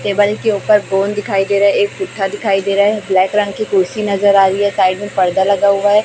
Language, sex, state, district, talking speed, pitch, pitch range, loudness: Hindi, female, Chhattisgarh, Raipur, 275 wpm, 200 Hz, 195-210 Hz, -14 LUFS